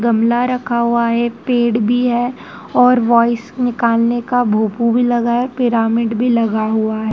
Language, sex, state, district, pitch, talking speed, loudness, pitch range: Hindi, female, Madhya Pradesh, Dhar, 235 Hz, 170 wpm, -15 LUFS, 230-245 Hz